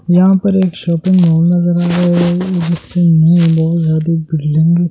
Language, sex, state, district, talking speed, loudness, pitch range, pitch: Hindi, male, Delhi, New Delhi, 145 wpm, -12 LUFS, 165-175 Hz, 175 Hz